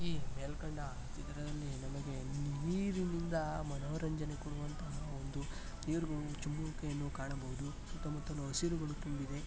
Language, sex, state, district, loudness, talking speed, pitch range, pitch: Kannada, male, Karnataka, Mysore, -42 LUFS, 95 wpm, 140-155 Hz, 150 Hz